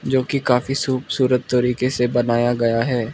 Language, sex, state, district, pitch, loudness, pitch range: Hindi, male, Arunachal Pradesh, Lower Dibang Valley, 125 Hz, -19 LUFS, 120-130 Hz